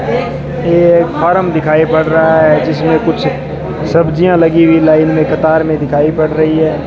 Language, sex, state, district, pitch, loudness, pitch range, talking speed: Hindi, male, Rajasthan, Bikaner, 160 Hz, -11 LUFS, 155-165 Hz, 175 wpm